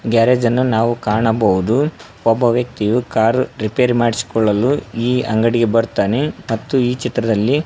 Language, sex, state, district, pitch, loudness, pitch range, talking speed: Kannada, male, Karnataka, Koppal, 115 Hz, -16 LUFS, 110-125 Hz, 125 wpm